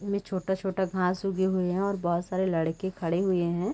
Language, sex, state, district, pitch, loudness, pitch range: Hindi, female, Chhattisgarh, Raigarh, 185 Hz, -28 LUFS, 180-190 Hz